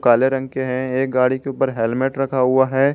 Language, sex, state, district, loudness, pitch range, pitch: Hindi, male, Jharkhand, Garhwa, -19 LUFS, 130-135 Hz, 130 Hz